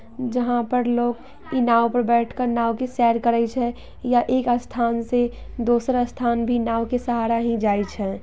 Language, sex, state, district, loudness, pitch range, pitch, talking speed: Maithili, female, Bihar, Samastipur, -22 LUFS, 235-245 Hz, 240 Hz, 190 wpm